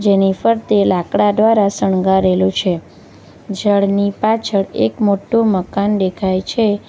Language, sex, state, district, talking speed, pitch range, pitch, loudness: Gujarati, female, Gujarat, Valsad, 115 wpm, 190-210 Hz, 200 Hz, -15 LUFS